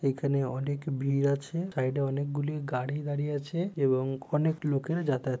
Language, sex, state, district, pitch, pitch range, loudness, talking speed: Bengali, male, West Bengal, Purulia, 140 Hz, 135-150 Hz, -30 LUFS, 155 wpm